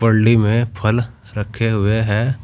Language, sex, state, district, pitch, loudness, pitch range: Hindi, male, Uttar Pradesh, Saharanpur, 110 Hz, -17 LUFS, 105-115 Hz